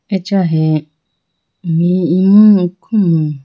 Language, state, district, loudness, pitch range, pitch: Idu Mishmi, Arunachal Pradesh, Lower Dibang Valley, -12 LUFS, 160-195 Hz, 175 Hz